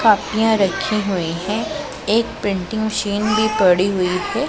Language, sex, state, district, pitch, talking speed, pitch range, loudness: Hindi, female, Punjab, Pathankot, 210 Hz, 145 wpm, 190-220 Hz, -19 LUFS